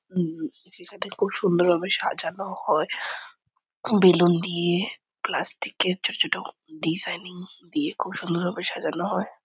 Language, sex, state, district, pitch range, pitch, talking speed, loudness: Bengali, female, West Bengal, Purulia, 175-195 Hz, 180 Hz, 115 wpm, -25 LUFS